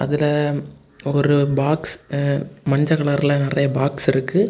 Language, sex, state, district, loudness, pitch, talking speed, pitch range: Tamil, male, Tamil Nadu, Kanyakumari, -20 LUFS, 140 Hz, 105 wpm, 140-145 Hz